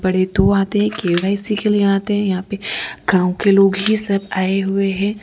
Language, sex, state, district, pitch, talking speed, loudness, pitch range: Hindi, female, Gujarat, Valsad, 195 Hz, 205 wpm, -17 LUFS, 190-205 Hz